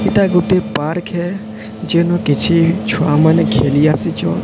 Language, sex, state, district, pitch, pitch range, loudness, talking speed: Odia, male, Odisha, Sambalpur, 170 Hz, 150-180 Hz, -14 LUFS, 95 wpm